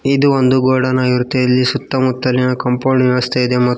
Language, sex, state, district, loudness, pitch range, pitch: Kannada, male, Karnataka, Koppal, -14 LUFS, 125-130 Hz, 125 Hz